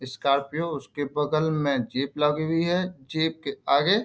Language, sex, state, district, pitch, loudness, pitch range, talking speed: Hindi, male, Bihar, Bhagalpur, 150 Hz, -26 LUFS, 140-160 Hz, 180 wpm